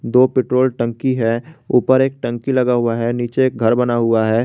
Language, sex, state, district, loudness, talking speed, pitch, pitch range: Hindi, male, Jharkhand, Garhwa, -17 LUFS, 215 wpm, 125 Hz, 115-130 Hz